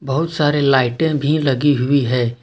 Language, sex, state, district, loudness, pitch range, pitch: Hindi, male, Jharkhand, Ranchi, -16 LUFS, 130-150 Hz, 140 Hz